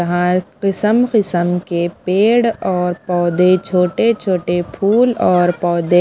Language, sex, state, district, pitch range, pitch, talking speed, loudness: Hindi, female, Maharashtra, Mumbai Suburban, 175-210 Hz, 180 Hz, 90 wpm, -15 LUFS